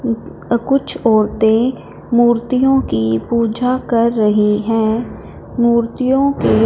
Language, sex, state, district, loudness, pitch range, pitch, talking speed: Hindi, female, Punjab, Fazilka, -15 LUFS, 220-255 Hz, 235 Hz, 100 wpm